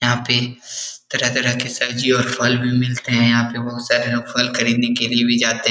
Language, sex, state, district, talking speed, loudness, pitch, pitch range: Hindi, male, Bihar, Jahanabad, 265 wpm, -18 LUFS, 120 Hz, 120-125 Hz